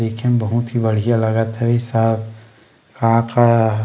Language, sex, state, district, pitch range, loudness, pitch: Chhattisgarhi, male, Chhattisgarh, Bastar, 110-120 Hz, -17 LUFS, 115 Hz